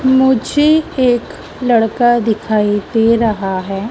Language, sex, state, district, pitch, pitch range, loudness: Hindi, female, Madhya Pradesh, Dhar, 230 Hz, 215-260 Hz, -14 LUFS